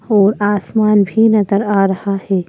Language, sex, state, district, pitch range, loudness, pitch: Hindi, female, Madhya Pradesh, Bhopal, 195-210 Hz, -14 LUFS, 205 Hz